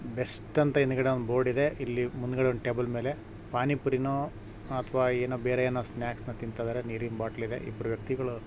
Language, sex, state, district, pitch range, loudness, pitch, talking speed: Kannada, male, Karnataka, Shimoga, 115-130 Hz, -29 LUFS, 125 Hz, 165 wpm